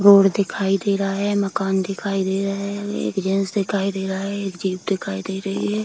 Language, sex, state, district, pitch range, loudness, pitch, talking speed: Hindi, female, Bihar, Kishanganj, 195-200 Hz, -22 LUFS, 195 Hz, 215 wpm